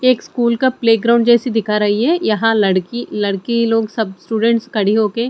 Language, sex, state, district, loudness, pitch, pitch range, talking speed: Hindi, female, Chandigarh, Chandigarh, -16 LUFS, 225 Hz, 210-235 Hz, 205 wpm